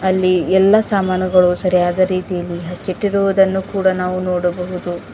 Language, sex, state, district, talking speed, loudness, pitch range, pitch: Kannada, female, Karnataka, Bidar, 95 wpm, -16 LUFS, 180-190 Hz, 185 Hz